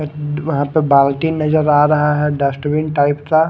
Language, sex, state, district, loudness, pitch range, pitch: Hindi, male, Odisha, Khordha, -15 LUFS, 145-155 Hz, 150 Hz